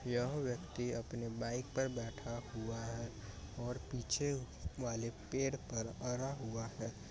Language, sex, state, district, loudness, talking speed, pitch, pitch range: Hindi, male, Bihar, Muzaffarpur, -42 LUFS, 145 wpm, 120 Hz, 115-125 Hz